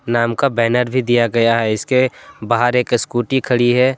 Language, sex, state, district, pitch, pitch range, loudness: Hindi, male, Jharkhand, Deoghar, 120 Hz, 115-125 Hz, -16 LUFS